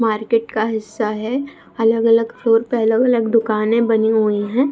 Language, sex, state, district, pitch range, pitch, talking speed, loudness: Hindi, female, Bihar, Saharsa, 220-230 Hz, 225 Hz, 165 wpm, -17 LUFS